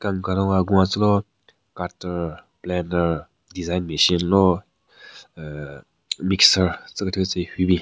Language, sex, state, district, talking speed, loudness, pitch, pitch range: Rengma, male, Nagaland, Kohima, 130 wpm, -21 LUFS, 90 Hz, 85-95 Hz